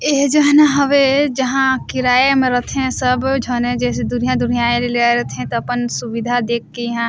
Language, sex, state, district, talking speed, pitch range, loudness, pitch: Surgujia, female, Chhattisgarh, Sarguja, 170 wpm, 240-270 Hz, -16 LUFS, 250 Hz